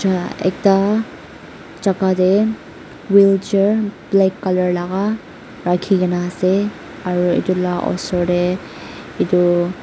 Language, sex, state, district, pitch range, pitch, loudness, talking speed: Nagamese, female, Nagaland, Dimapur, 180-200 Hz, 185 Hz, -17 LUFS, 90 wpm